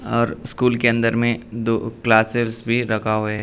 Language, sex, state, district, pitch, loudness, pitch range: Hindi, male, Arunachal Pradesh, Lower Dibang Valley, 115 Hz, -20 LUFS, 110-120 Hz